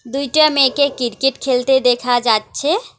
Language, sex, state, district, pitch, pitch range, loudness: Bengali, female, West Bengal, Alipurduar, 265 Hz, 245-280 Hz, -15 LUFS